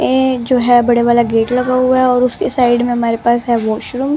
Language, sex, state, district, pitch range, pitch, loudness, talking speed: Hindi, female, Bihar, West Champaran, 235-255 Hz, 245 Hz, -13 LUFS, 260 wpm